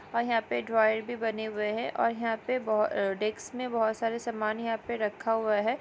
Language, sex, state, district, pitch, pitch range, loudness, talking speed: Hindi, female, Maharashtra, Aurangabad, 225 Hz, 215-230 Hz, -30 LUFS, 215 wpm